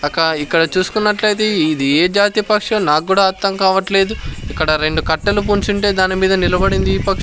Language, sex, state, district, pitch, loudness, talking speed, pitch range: Telugu, male, Andhra Pradesh, Sri Satya Sai, 190 Hz, -15 LUFS, 150 wpm, 160-205 Hz